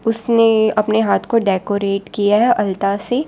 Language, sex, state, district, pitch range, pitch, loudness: Hindi, female, Gujarat, Valsad, 200-225 Hz, 215 Hz, -16 LUFS